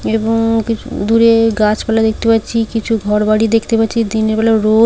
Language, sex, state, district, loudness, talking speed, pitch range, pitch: Bengali, female, West Bengal, Paschim Medinipur, -14 LUFS, 160 wpm, 220-225 Hz, 225 Hz